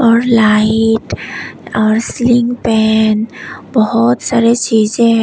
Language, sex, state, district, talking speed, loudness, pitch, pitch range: Hindi, female, Tripura, West Tripura, 105 wpm, -12 LUFS, 225 Hz, 220-235 Hz